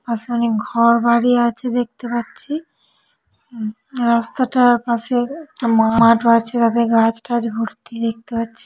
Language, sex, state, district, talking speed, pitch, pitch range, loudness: Bengali, female, West Bengal, North 24 Parganas, 125 wpm, 235 Hz, 230-245 Hz, -17 LUFS